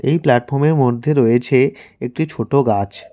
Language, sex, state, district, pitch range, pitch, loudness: Bengali, male, West Bengal, Cooch Behar, 120-150 Hz, 130 Hz, -16 LUFS